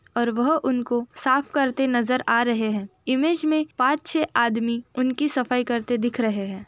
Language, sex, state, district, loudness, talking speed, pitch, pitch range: Hindi, female, Uttar Pradesh, Budaun, -23 LUFS, 190 wpm, 250 Hz, 235-275 Hz